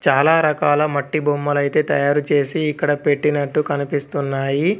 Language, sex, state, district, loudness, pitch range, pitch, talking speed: Telugu, male, Telangana, Komaram Bheem, -18 LUFS, 140-150 Hz, 145 Hz, 110 wpm